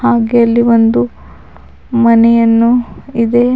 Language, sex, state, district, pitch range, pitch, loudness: Kannada, female, Karnataka, Bidar, 195-240 Hz, 230 Hz, -11 LUFS